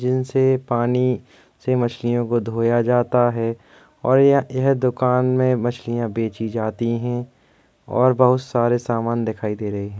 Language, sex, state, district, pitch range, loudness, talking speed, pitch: Hindi, male, Uttar Pradesh, Jalaun, 115-125 Hz, -20 LUFS, 145 wpm, 120 Hz